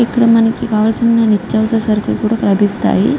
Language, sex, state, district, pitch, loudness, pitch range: Telugu, female, Andhra Pradesh, Guntur, 220 Hz, -13 LUFS, 215-230 Hz